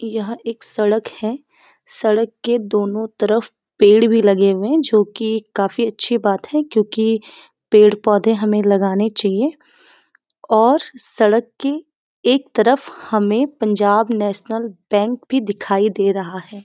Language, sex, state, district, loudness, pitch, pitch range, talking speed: Hindi, female, Uttarakhand, Uttarkashi, -17 LUFS, 220 Hz, 210-235 Hz, 140 wpm